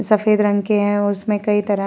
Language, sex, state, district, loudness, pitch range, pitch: Hindi, female, Uttar Pradesh, Varanasi, -18 LUFS, 205-210 Hz, 205 Hz